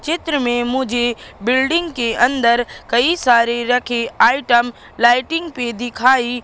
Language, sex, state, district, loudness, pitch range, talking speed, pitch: Hindi, female, Madhya Pradesh, Katni, -16 LUFS, 240-265 Hz, 120 wpm, 245 Hz